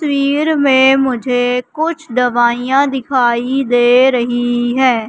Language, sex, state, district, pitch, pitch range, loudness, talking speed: Hindi, female, Madhya Pradesh, Katni, 255 Hz, 245-270 Hz, -13 LUFS, 105 wpm